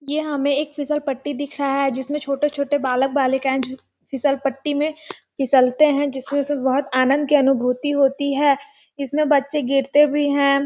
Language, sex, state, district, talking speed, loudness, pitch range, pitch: Hindi, female, Chhattisgarh, Sarguja, 175 wpm, -20 LUFS, 270-290 Hz, 280 Hz